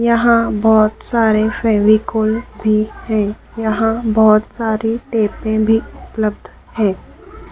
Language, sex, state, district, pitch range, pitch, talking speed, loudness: Hindi, female, Madhya Pradesh, Dhar, 215-225 Hz, 220 Hz, 105 wpm, -16 LUFS